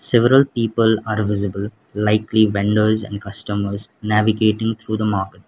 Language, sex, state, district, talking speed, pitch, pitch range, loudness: English, male, Sikkim, Gangtok, 130 wpm, 105 Hz, 100-110 Hz, -19 LUFS